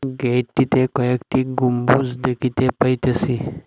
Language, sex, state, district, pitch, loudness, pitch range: Bengali, male, Assam, Hailakandi, 125 Hz, -19 LUFS, 125-130 Hz